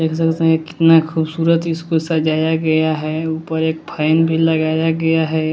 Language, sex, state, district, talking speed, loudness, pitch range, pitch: Hindi, male, Bihar, West Champaran, 140 wpm, -16 LUFS, 160-165 Hz, 160 Hz